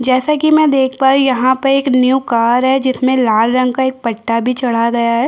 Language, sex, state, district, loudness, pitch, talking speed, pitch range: Hindi, female, Chhattisgarh, Bastar, -13 LUFS, 255 Hz, 260 wpm, 235-265 Hz